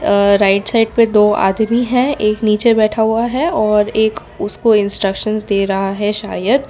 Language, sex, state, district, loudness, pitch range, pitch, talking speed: Hindi, female, Gujarat, Valsad, -14 LUFS, 200-225 Hz, 215 Hz, 180 wpm